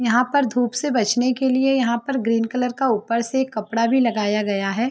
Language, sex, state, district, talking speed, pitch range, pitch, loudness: Hindi, female, Bihar, Sitamarhi, 255 wpm, 230-260 Hz, 240 Hz, -20 LUFS